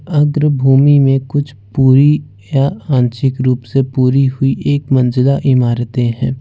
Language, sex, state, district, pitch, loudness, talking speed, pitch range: Hindi, male, Jharkhand, Ranchi, 135 Hz, -13 LUFS, 140 wpm, 125-140 Hz